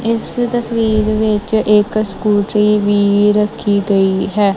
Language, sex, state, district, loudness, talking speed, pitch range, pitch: Punjabi, male, Punjab, Kapurthala, -14 LUFS, 120 wpm, 205-220 Hz, 210 Hz